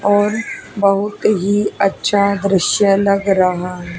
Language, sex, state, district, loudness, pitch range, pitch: Hindi, female, Haryana, Charkhi Dadri, -15 LUFS, 190-205 Hz, 200 Hz